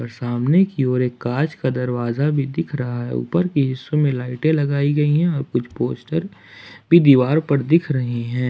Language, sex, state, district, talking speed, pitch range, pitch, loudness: Hindi, male, Jharkhand, Ranchi, 195 wpm, 120-150 Hz, 135 Hz, -19 LUFS